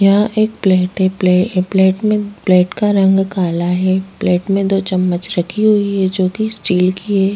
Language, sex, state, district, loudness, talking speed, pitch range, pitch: Hindi, female, Uttarakhand, Tehri Garhwal, -15 LUFS, 195 wpm, 185-205 Hz, 190 Hz